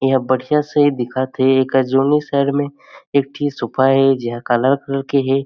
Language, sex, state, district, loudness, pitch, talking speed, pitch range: Chhattisgarhi, male, Chhattisgarh, Jashpur, -17 LUFS, 135 Hz, 185 wpm, 130-140 Hz